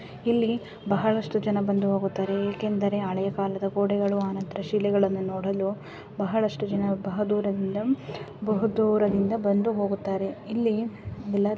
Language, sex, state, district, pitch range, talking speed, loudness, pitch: Kannada, female, Karnataka, Bijapur, 195-215 Hz, 110 wpm, -26 LUFS, 200 Hz